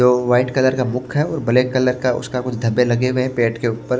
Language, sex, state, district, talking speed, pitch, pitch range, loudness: Hindi, male, Maharashtra, Washim, 285 wpm, 125 Hz, 120-130 Hz, -18 LUFS